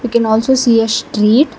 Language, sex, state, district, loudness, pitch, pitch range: English, female, Karnataka, Bangalore, -13 LUFS, 230 Hz, 220-250 Hz